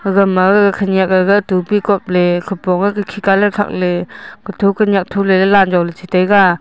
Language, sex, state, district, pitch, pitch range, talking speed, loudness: Wancho, female, Arunachal Pradesh, Longding, 195 Hz, 185-200 Hz, 120 wpm, -13 LUFS